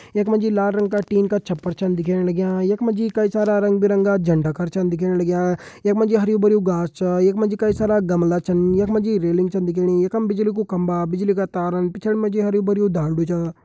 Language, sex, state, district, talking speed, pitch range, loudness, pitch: Hindi, male, Uttarakhand, Uttarkashi, 255 wpm, 180-210 Hz, -20 LUFS, 195 Hz